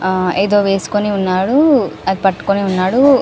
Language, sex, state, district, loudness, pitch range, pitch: Telugu, female, Telangana, Karimnagar, -14 LUFS, 185-210 Hz, 195 Hz